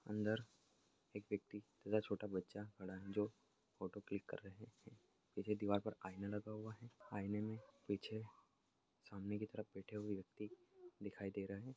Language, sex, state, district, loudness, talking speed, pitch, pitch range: Hindi, male, Maharashtra, Nagpur, -47 LUFS, 165 wpm, 105 Hz, 100-110 Hz